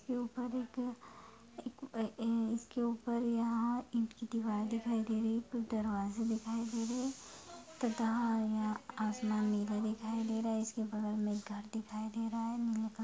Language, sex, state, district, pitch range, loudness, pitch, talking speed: Hindi, female, Bihar, Purnia, 220-235 Hz, -37 LUFS, 225 Hz, 190 wpm